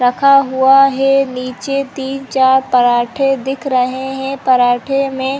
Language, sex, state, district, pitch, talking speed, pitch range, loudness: Hindi, female, Chhattisgarh, Korba, 265 Hz, 145 wpm, 255-275 Hz, -14 LUFS